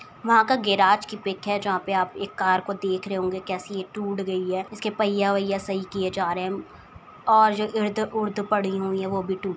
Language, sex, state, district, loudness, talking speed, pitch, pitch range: Hindi, female, Uttar Pradesh, Budaun, -24 LUFS, 245 wpm, 195 Hz, 190-210 Hz